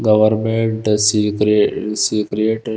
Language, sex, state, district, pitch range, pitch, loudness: Hindi, male, Himachal Pradesh, Shimla, 105-110 Hz, 110 Hz, -16 LUFS